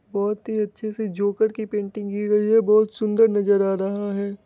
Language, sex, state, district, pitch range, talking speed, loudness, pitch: Hindi, male, Bihar, Muzaffarpur, 200-215 Hz, 230 wpm, -22 LUFS, 210 Hz